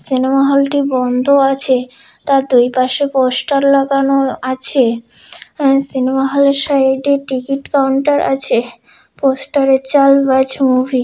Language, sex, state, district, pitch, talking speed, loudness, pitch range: Bengali, female, West Bengal, Dakshin Dinajpur, 270 Hz, 115 wpm, -13 LUFS, 260-275 Hz